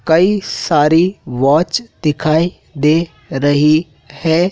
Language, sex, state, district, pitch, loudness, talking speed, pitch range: Hindi, male, Madhya Pradesh, Dhar, 155 Hz, -15 LUFS, 95 wpm, 145-170 Hz